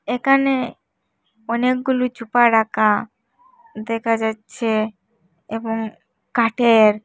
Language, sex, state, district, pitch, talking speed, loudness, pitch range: Bengali, female, Assam, Hailakandi, 230 Hz, 70 wpm, -19 LUFS, 220-250 Hz